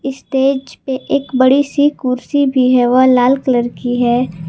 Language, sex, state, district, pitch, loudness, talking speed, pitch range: Hindi, female, Jharkhand, Palamu, 260 Hz, -14 LUFS, 175 wpm, 250-275 Hz